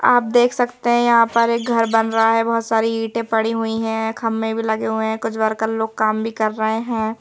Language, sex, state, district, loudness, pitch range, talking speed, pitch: Hindi, female, Madhya Pradesh, Bhopal, -19 LUFS, 220-230 Hz, 250 wpm, 225 Hz